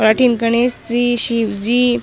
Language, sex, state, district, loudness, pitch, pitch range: Marwari, female, Rajasthan, Nagaur, -16 LUFS, 240 Hz, 230-245 Hz